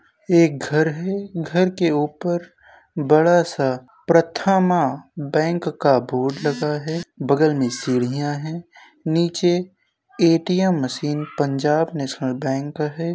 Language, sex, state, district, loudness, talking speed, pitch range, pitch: Hindi, male, Uttar Pradesh, Jyotiba Phule Nagar, -20 LUFS, 125 wpm, 140-170 Hz, 155 Hz